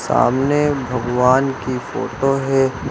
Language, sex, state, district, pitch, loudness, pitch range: Hindi, male, Uttar Pradesh, Lucknow, 130 Hz, -18 LUFS, 125-135 Hz